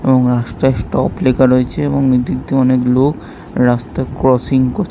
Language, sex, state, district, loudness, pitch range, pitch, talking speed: Bengali, male, West Bengal, Kolkata, -14 LUFS, 125-135 Hz, 130 Hz, 145 wpm